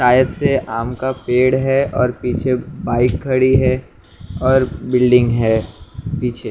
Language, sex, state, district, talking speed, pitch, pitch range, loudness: Hindi, male, Maharashtra, Mumbai Suburban, 140 wpm, 125 Hz, 120-130 Hz, -17 LUFS